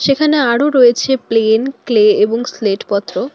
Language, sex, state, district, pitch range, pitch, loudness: Bengali, female, West Bengal, Alipurduar, 215-265 Hz, 235 Hz, -13 LUFS